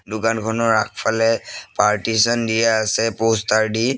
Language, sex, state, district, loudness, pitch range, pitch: Assamese, male, Assam, Sonitpur, -18 LUFS, 110-115 Hz, 110 Hz